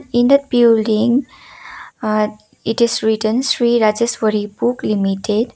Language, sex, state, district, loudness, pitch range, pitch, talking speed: English, female, Sikkim, Gangtok, -16 LUFS, 215-245 Hz, 235 Hz, 120 wpm